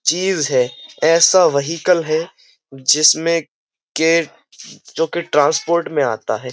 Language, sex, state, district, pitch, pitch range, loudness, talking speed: Hindi, male, Uttar Pradesh, Jyotiba Phule Nagar, 165 Hz, 155-170 Hz, -16 LUFS, 120 wpm